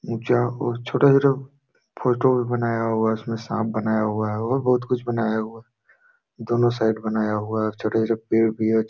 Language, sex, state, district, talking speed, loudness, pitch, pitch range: Hindi, male, Jharkhand, Jamtara, 195 wpm, -22 LUFS, 115 Hz, 110-125 Hz